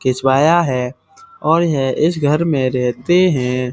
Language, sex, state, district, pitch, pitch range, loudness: Hindi, male, Uttar Pradesh, Muzaffarnagar, 140 Hz, 130-170 Hz, -16 LUFS